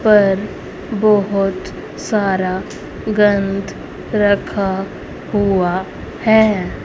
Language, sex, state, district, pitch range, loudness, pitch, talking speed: Hindi, female, Haryana, Rohtak, 195-210 Hz, -16 LUFS, 200 Hz, 60 wpm